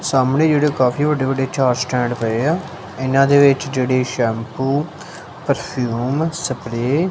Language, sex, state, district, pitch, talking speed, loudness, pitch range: Punjabi, male, Punjab, Kapurthala, 130 Hz, 145 wpm, -18 LUFS, 125-145 Hz